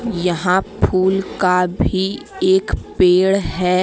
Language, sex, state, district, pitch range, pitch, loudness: Hindi, female, Jharkhand, Deoghar, 180-195 Hz, 185 Hz, -17 LUFS